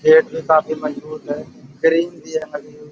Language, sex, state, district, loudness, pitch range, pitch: Hindi, male, Uttar Pradesh, Budaun, -19 LUFS, 150-165 Hz, 155 Hz